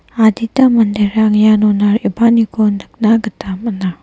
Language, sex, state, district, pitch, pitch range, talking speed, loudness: Garo, female, Meghalaya, West Garo Hills, 215 Hz, 205-230 Hz, 105 wpm, -13 LUFS